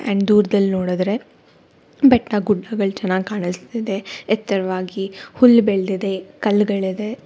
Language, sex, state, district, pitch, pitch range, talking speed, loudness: Kannada, female, Karnataka, Bangalore, 200 Hz, 190-210 Hz, 100 wpm, -19 LUFS